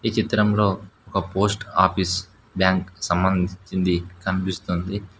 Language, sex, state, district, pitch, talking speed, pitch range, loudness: Telugu, male, Telangana, Hyderabad, 95 Hz, 90 wpm, 95-100 Hz, -23 LUFS